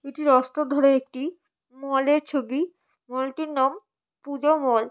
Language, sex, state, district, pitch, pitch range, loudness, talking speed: Bengali, female, West Bengal, Paschim Medinipur, 280 Hz, 265-300 Hz, -24 LUFS, 185 wpm